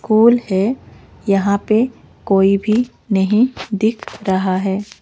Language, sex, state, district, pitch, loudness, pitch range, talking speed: Hindi, female, Odisha, Malkangiri, 205 Hz, -17 LUFS, 195-230 Hz, 120 wpm